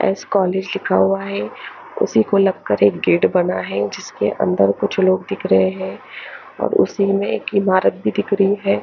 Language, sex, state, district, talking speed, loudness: Hindi, female, Chandigarh, Chandigarh, 190 wpm, -18 LUFS